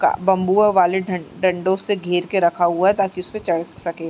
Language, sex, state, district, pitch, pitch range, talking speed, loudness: Hindi, female, Uttarakhand, Tehri Garhwal, 185 Hz, 175-195 Hz, 205 wpm, -19 LUFS